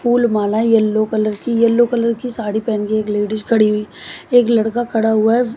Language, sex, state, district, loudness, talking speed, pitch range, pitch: Hindi, female, Haryana, Jhajjar, -16 LUFS, 225 wpm, 215-240 Hz, 225 Hz